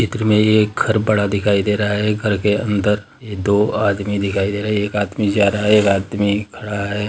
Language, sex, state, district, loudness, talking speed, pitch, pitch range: Hindi, male, Bihar, Darbhanga, -17 LUFS, 245 wpm, 105 Hz, 100-105 Hz